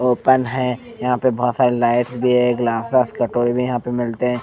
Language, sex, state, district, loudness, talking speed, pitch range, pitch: Hindi, male, Punjab, Fazilka, -18 LUFS, 230 wpm, 120-125 Hz, 125 Hz